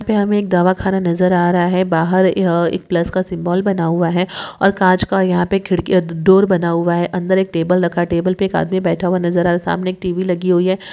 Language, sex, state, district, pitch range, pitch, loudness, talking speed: Hindi, female, Maharashtra, Chandrapur, 175-190 Hz, 180 Hz, -16 LUFS, 250 wpm